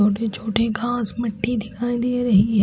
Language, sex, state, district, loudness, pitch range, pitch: Hindi, female, Chhattisgarh, Raipur, -22 LUFS, 210-240 Hz, 225 Hz